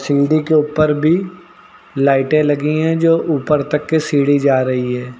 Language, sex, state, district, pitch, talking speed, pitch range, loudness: Hindi, male, Uttar Pradesh, Lucknow, 150 Hz, 175 wpm, 140-155 Hz, -15 LUFS